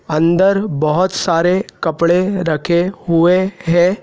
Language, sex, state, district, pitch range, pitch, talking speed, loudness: Hindi, male, Madhya Pradesh, Dhar, 165-185 Hz, 175 Hz, 105 wpm, -15 LUFS